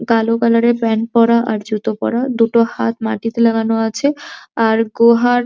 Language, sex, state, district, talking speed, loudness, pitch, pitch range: Bengali, male, West Bengal, Jhargram, 175 wpm, -15 LUFS, 230 Hz, 225-235 Hz